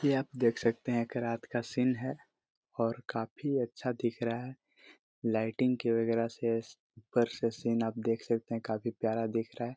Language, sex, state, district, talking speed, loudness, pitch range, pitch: Hindi, male, Chhattisgarh, Korba, 165 wpm, -33 LUFS, 115-120 Hz, 115 Hz